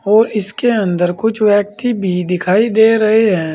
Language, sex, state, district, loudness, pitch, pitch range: Hindi, male, Uttar Pradesh, Saharanpur, -14 LUFS, 210 Hz, 185-225 Hz